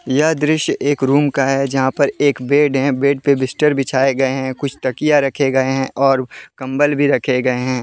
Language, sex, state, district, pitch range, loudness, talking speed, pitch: Hindi, male, Jharkhand, Deoghar, 130-145 Hz, -16 LUFS, 205 wpm, 135 Hz